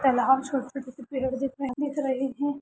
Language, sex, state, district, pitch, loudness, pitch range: Hindi, female, Rajasthan, Churu, 265 Hz, -28 LUFS, 260-280 Hz